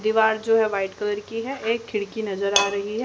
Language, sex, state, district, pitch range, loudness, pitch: Hindi, female, Haryana, Jhajjar, 200-225 Hz, -23 LUFS, 215 Hz